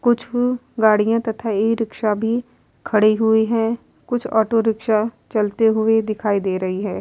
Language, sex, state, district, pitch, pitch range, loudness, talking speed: Hindi, female, Bihar, Vaishali, 220 Hz, 215-230 Hz, -19 LUFS, 145 wpm